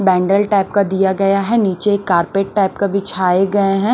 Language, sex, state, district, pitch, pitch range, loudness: Hindi, female, Maharashtra, Washim, 195 Hz, 190-200 Hz, -15 LUFS